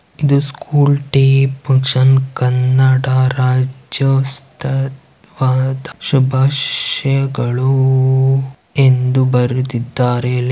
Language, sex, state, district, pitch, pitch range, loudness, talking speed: Kannada, male, Karnataka, Chamarajanagar, 130 Hz, 130-135 Hz, -14 LUFS, 75 wpm